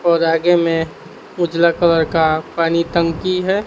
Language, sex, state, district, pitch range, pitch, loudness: Hindi, male, Bihar, Kaimur, 165-175 Hz, 170 Hz, -16 LUFS